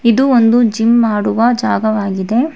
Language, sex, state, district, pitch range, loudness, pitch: Kannada, female, Karnataka, Bangalore, 215-240 Hz, -13 LUFS, 230 Hz